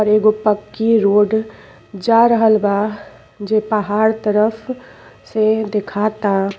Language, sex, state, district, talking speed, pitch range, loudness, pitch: Bhojpuri, female, Uttar Pradesh, Ghazipur, 110 wpm, 205-220 Hz, -16 LUFS, 215 Hz